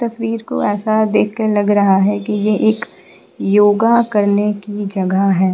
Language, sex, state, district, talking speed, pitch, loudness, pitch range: Hindi, female, Bihar, Patna, 150 wpm, 210 Hz, -15 LUFS, 205-220 Hz